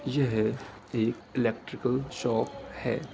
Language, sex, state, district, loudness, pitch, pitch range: Hindi, male, Uttar Pradesh, Etah, -30 LUFS, 120 Hz, 110-130 Hz